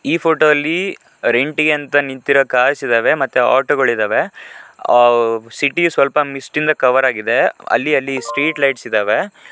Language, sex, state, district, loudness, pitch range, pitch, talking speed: Kannada, male, Karnataka, Shimoga, -15 LUFS, 130-150 Hz, 140 Hz, 150 wpm